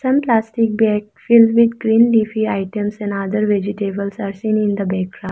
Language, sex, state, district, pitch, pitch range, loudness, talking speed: English, female, Arunachal Pradesh, Lower Dibang Valley, 215 Hz, 200-225 Hz, -17 LUFS, 190 wpm